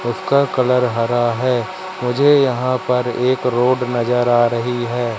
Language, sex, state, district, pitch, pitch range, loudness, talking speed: Hindi, male, Madhya Pradesh, Katni, 125 Hz, 120-130 Hz, -17 LUFS, 150 wpm